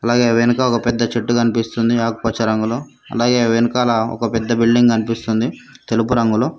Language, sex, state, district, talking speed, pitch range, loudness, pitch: Telugu, female, Telangana, Mahabubabad, 155 wpm, 115-120 Hz, -17 LUFS, 115 Hz